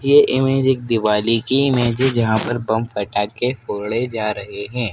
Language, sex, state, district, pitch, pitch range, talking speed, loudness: Hindi, male, Madhya Pradesh, Dhar, 115 Hz, 110-130 Hz, 185 wpm, -18 LUFS